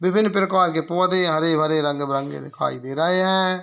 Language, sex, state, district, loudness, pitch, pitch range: Hindi, male, Bihar, Muzaffarpur, -20 LUFS, 170 Hz, 155-185 Hz